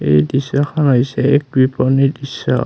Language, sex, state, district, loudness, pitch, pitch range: Assamese, male, Assam, Kamrup Metropolitan, -15 LUFS, 135 Hz, 130-140 Hz